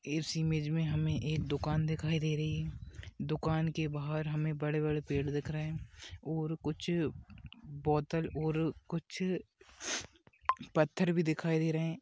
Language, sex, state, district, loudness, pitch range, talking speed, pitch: Hindi, female, Rajasthan, Nagaur, -35 LUFS, 150-160 Hz, 155 wpm, 155 Hz